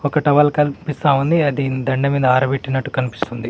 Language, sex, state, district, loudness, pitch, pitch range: Telugu, male, Telangana, Mahabubabad, -17 LUFS, 140 Hz, 130-145 Hz